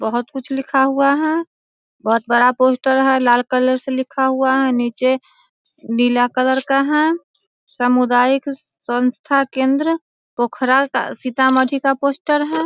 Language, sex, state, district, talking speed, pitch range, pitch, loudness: Hindi, female, Bihar, Sitamarhi, 145 wpm, 250-275 Hz, 265 Hz, -17 LUFS